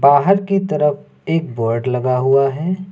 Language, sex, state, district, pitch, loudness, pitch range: Hindi, male, Uttar Pradesh, Lucknow, 145 Hz, -17 LUFS, 130-185 Hz